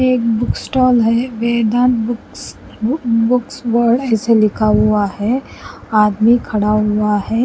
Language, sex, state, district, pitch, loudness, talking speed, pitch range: Hindi, female, Punjab, Pathankot, 230 Hz, -15 LUFS, 135 wpm, 215-245 Hz